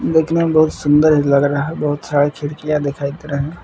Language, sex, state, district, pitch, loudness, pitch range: Hindi, male, Jharkhand, Palamu, 150 Hz, -16 LUFS, 145-155 Hz